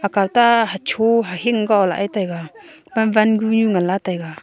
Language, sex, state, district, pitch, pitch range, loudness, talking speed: Wancho, female, Arunachal Pradesh, Longding, 215 Hz, 190-225 Hz, -17 LUFS, 175 wpm